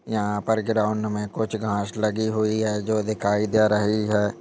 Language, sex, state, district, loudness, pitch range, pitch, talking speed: Hindi, male, Chhattisgarh, Kabirdham, -23 LUFS, 105-110 Hz, 110 Hz, 190 wpm